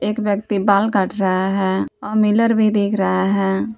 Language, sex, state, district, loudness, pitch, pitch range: Hindi, female, Jharkhand, Palamu, -18 LUFS, 200 Hz, 190-210 Hz